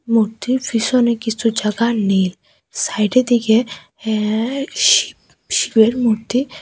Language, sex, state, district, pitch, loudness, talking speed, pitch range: Bengali, female, Assam, Hailakandi, 230 Hz, -17 LUFS, 100 wpm, 215-245 Hz